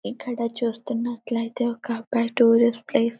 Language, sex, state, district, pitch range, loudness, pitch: Telugu, female, Telangana, Karimnagar, 230-240 Hz, -24 LUFS, 235 Hz